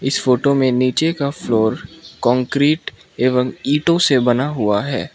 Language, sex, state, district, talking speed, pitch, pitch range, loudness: Hindi, male, Mizoram, Aizawl, 150 wpm, 130 Hz, 125-145 Hz, -17 LUFS